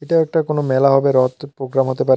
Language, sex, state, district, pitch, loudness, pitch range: Bengali, male, Tripura, South Tripura, 135 Hz, -17 LUFS, 130-150 Hz